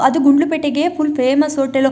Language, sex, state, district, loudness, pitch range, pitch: Kannada, female, Karnataka, Chamarajanagar, -15 LUFS, 270-305 Hz, 290 Hz